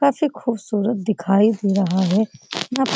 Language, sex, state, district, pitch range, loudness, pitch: Hindi, female, Bihar, Supaul, 195-240 Hz, -20 LUFS, 215 Hz